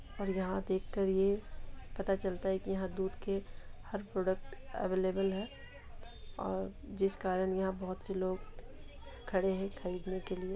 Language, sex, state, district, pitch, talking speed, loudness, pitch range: Hindi, female, Jharkhand, Sahebganj, 190 Hz, 155 wpm, -36 LUFS, 185-195 Hz